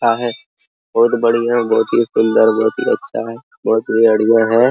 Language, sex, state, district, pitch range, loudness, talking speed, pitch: Hindi, male, Bihar, Araria, 110-120 Hz, -15 LUFS, 180 wpm, 115 Hz